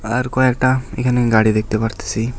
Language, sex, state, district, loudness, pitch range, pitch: Bengali, male, West Bengal, Alipurduar, -17 LUFS, 110-125 Hz, 115 Hz